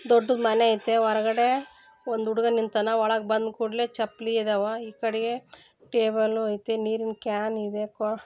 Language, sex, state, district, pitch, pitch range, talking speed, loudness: Kannada, female, Karnataka, Bellary, 225 Hz, 220-230 Hz, 125 wpm, -26 LUFS